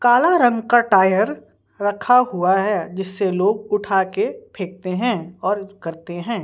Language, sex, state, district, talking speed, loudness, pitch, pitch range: Hindi, female, Bihar, Patna, 150 wpm, -19 LUFS, 200 Hz, 185-230 Hz